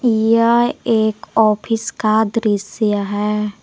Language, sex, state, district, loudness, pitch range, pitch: Hindi, female, Jharkhand, Palamu, -17 LUFS, 210-230 Hz, 220 Hz